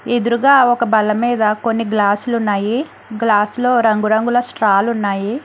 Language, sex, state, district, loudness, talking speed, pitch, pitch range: Telugu, female, Telangana, Hyderabad, -15 LUFS, 120 wpm, 225 Hz, 210-240 Hz